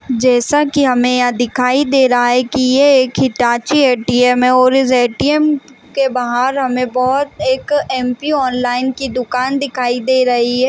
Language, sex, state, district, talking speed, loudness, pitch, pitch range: Hindi, female, Chhattisgarh, Balrampur, 170 wpm, -14 LUFS, 255 Hz, 250-275 Hz